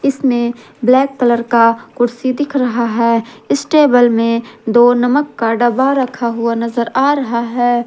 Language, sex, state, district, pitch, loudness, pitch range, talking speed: Hindi, female, Jharkhand, Ranchi, 240 Hz, -14 LUFS, 235-260 Hz, 160 wpm